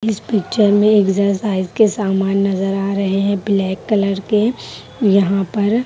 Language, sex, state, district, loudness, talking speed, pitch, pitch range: Hindi, female, Haryana, Rohtak, -16 LUFS, 155 wpm, 200 Hz, 195-210 Hz